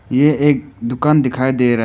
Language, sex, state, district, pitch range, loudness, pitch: Hindi, male, Arunachal Pradesh, Papum Pare, 125-145 Hz, -15 LUFS, 130 Hz